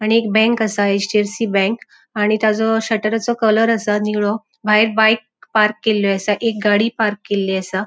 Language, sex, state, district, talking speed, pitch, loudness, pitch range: Konkani, female, Goa, North and South Goa, 170 wpm, 215 Hz, -17 LUFS, 205-225 Hz